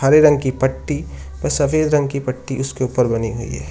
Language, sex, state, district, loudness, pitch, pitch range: Hindi, male, Uttar Pradesh, Shamli, -19 LUFS, 130 Hz, 115-135 Hz